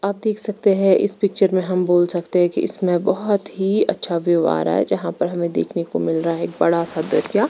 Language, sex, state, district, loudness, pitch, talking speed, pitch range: Hindi, female, Bihar, Patna, -18 LUFS, 180 Hz, 255 wpm, 170-195 Hz